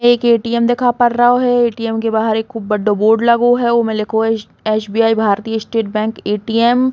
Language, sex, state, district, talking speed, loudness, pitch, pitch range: Bundeli, female, Uttar Pradesh, Hamirpur, 215 wpm, -15 LUFS, 225 Hz, 220-240 Hz